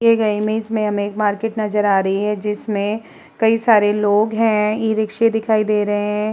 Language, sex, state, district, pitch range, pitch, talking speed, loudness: Hindi, female, Uttar Pradesh, Muzaffarnagar, 210-220 Hz, 215 Hz, 200 wpm, -18 LUFS